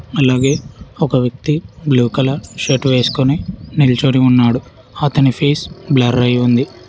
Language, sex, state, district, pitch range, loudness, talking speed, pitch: Telugu, male, Telangana, Hyderabad, 125-145 Hz, -15 LUFS, 120 wpm, 135 Hz